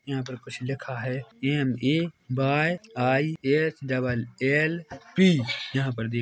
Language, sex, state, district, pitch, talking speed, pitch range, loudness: Hindi, male, Chhattisgarh, Korba, 135 Hz, 135 wpm, 130-150 Hz, -26 LUFS